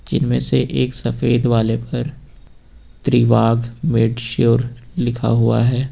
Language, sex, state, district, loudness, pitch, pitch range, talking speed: Hindi, male, Uttar Pradesh, Lucknow, -18 LUFS, 120 Hz, 115-125 Hz, 110 wpm